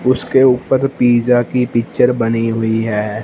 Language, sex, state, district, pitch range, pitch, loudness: Hindi, male, Punjab, Fazilka, 115-125 Hz, 120 Hz, -14 LUFS